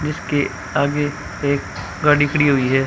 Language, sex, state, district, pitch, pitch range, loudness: Hindi, female, Haryana, Charkhi Dadri, 145 Hz, 140-150 Hz, -19 LUFS